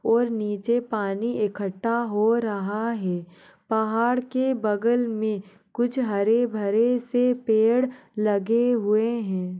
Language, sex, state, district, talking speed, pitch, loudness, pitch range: Hindi, female, Chhattisgarh, Balrampur, 120 wpm, 225 Hz, -24 LUFS, 205-240 Hz